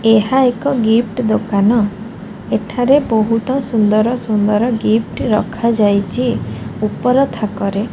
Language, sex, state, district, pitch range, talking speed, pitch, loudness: Odia, female, Odisha, Khordha, 210-245 Hz, 105 wpm, 220 Hz, -15 LUFS